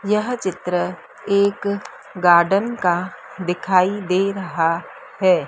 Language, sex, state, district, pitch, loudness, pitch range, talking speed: Hindi, female, Madhya Pradesh, Dhar, 185 Hz, -20 LUFS, 175-200 Hz, 100 wpm